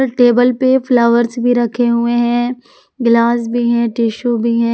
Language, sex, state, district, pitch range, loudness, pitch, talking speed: Hindi, female, Jharkhand, Palamu, 235-245 Hz, -14 LUFS, 240 Hz, 165 wpm